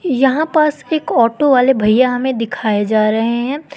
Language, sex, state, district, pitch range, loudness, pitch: Hindi, female, Madhya Pradesh, Katni, 230-290 Hz, -14 LUFS, 255 Hz